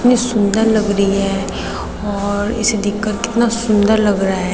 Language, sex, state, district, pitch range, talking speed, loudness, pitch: Hindi, female, Uttarakhand, Tehri Garhwal, 200-220 Hz, 185 wpm, -16 LUFS, 210 Hz